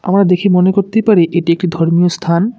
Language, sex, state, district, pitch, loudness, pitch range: Bengali, male, West Bengal, Cooch Behar, 180 Hz, -12 LUFS, 170-200 Hz